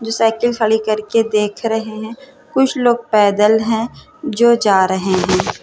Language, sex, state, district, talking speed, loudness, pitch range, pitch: Hindi, female, Uttar Pradesh, Hamirpur, 160 wpm, -15 LUFS, 215-235 Hz, 225 Hz